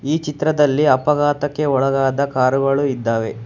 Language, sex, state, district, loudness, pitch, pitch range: Kannada, male, Karnataka, Bangalore, -17 LUFS, 140 Hz, 135-150 Hz